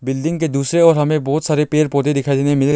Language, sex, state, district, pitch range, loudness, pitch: Hindi, male, Arunachal Pradesh, Longding, 140-155 Hz, -16 LUFS, 150 Hz